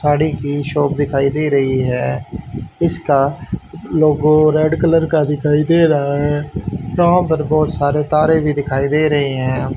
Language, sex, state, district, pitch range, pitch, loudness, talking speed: Hindi, male, Haryana, Rohtak, 140-155 Hz, 150 Hz, -15 LUFS, 160 wpm